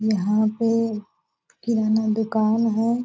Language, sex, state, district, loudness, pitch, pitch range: Hindi, female, Bihar, Purnia, -22 LUFS, 220 Hz, 215-230 Hz